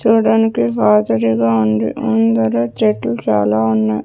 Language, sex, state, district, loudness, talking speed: Telugu, female, Andhra Pradesh, Sri Satya Sai, -15 LUFS, 135 wpm